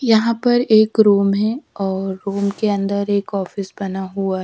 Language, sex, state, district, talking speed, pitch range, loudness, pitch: Hindi, female, Madhya Pradesh, Dhar, 190 wpm, 195-220 Hz, -18 LUFS, 200 Hz